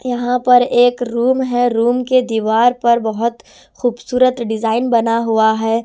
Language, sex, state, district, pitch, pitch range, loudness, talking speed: Hindi, female, Punjab, Kapurthala, 240 Hz, 225-245 Hz, -15 LUFS, 155 wpm